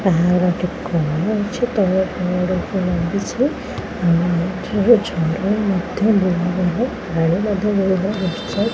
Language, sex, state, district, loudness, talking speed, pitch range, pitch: Odia, female, Odisha, Khordha, -19 LUFS, 135 wpm, 175-205 Hz, 185 Hz